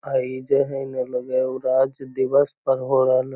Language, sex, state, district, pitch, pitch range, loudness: Magahi, male, Bihar, Lakhisarai, 130 Hz, 130-135 Hz, -22 LUFS